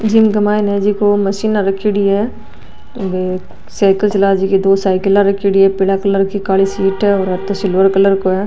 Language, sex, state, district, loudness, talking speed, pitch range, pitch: Marwari, female, Rajasthan, Nagaur, -14 LUFS, 190 wpm, 195-205 Hz, 195 Hz